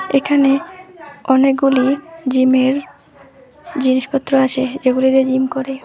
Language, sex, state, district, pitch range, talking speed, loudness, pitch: Bengali, female, West Bengal, Alipurduar, 260-285 Hz, 90 wpm, -15 LUFS, 270 Hz